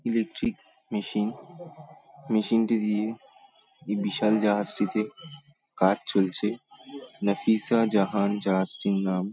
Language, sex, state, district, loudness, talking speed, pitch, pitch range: Bengali, male, West Bengal, Paschim Medinipur, -26 LUFS, 85 wpm, 105 Hz, 100-115 Hz